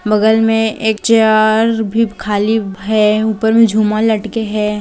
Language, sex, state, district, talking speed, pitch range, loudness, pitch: Hindi, female, Chhattisgarh, Raigarh, 150 wpm, 210-225 Hz, -13 LUFS, 220 Hz